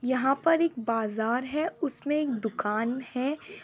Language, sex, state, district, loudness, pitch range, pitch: Hindi, female, Bihar, Madhepura, -28 LUFS, 230-300 Hz, 260 Hz